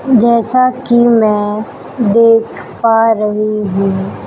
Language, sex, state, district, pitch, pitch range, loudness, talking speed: Hindi, female, Chhattisgarh, Raipur, 225 Hz, 210-235 Hz, -12 LUFS, 100 wpm